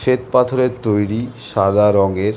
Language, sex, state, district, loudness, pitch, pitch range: Bengali, male, West Bengal, North 24 Parganas, -16 LUFS, 110 Hz, 105-125 Hz